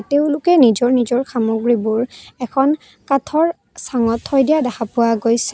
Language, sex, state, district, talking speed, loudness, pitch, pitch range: Assamese, female, Assam, Kamrup Metropolitan, 130 wpm, -17 LUFS, 250 Hz, 230-280 Hz